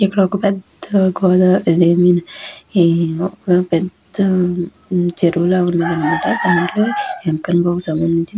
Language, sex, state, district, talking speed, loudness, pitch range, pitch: Telugu, female, Andhra Pradesh, Chittoor, 100 wpm, -16 LUFS, 170-190 Hz, 180 Hz